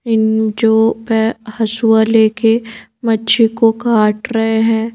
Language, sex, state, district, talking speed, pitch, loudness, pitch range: Hindi, female, Madhya Pradesh, Bhopal, 120 wpm, 225 Hz, -14 LUFS, 220-225 Hz